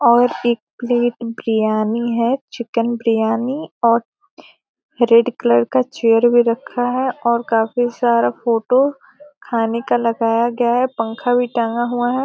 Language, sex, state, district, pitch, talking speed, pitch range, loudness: Hindi, female, Bihar, Gopalganj, 240 Hz, 135 wpm, 230-250 Hz, -17 LUFS